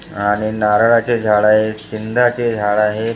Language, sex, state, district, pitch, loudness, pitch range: Marathi, male, Maharashtra, Gondia, 110 Hz, -15 LUFS, 105-115 Hz